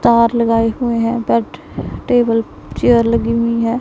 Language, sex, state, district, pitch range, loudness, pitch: Hindi, female, Punjab, Pathankot, 230-235 Hz, -15 LUFS, 230 Hz